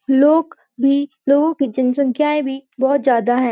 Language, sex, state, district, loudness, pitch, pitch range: Hindi, female, Uttarakhand, Uttarkashi, -17 LUFS, 275 Hz, 260-290 Hz